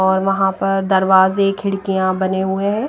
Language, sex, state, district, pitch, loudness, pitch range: Hindi, female, Odisha, Nuapada, 195 Hz, -16 LUFS, 190-195 Hz